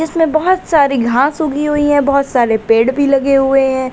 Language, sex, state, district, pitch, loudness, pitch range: Hindi, female, Uttar Pradesh, Lalitpur, 275 Hz, -13 LUFS, 260-300 Hz